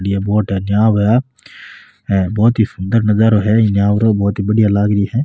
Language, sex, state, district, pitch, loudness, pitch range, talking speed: Marwari, male, Rajasthan, Nagaur, 105 Hz, -14 LUFS, 100-110 Hz, 215 wpm